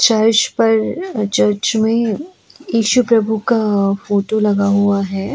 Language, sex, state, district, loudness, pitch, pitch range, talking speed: Hindi, female, Goa, North and South Goa, -15 LUFS, 220 Hz, 200-230 Hz, 125 wpm